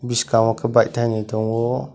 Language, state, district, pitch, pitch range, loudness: Kokborok, Tripura, West Tripura, 115 Hz, 110-120 Hz, -19 LUFS